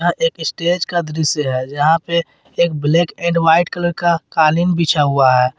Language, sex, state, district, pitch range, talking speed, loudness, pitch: Hindi, male, Jharkhand, Garhwa, 150-170 Hz, 185 wpm, -16 LUFS, 165 Hz